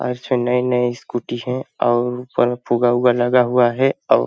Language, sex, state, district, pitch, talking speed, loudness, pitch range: Hindi, male, Chhattisgarh, Balrampur, 125 Hz, 185 wpm, -18 LUFS, 120-125 Hz